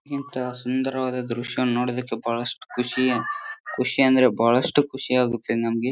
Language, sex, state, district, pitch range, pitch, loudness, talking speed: Kannada, male, Karnataka, Bijapur, 120-135 Hz, 125 Hz, -23 LUFS, 120 wpm